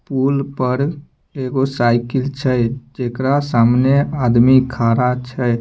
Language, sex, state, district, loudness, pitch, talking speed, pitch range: Maithili, male, Bihar, Samastipur, -17 LUFS, 130 Hz, 105 wpm, 120-135 Hz